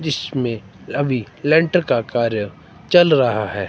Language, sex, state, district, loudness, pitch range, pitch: Hindi, male, Himachal Pradesh, Shimla, -18 LUFS, 110-155 Hz, 125 Hz